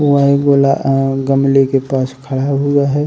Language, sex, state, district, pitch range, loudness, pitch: Hindi, male, Uttar Pradesh, Muzaffarnagar, 135-140 Hz, -14 LUFS, 135 Hz